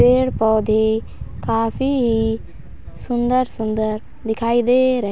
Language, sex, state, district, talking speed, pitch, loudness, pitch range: Hindi, female, Chhattisgarh, Raigarh, 95 wpm, 225 Hz, -19 LUFS, 220-250 Hz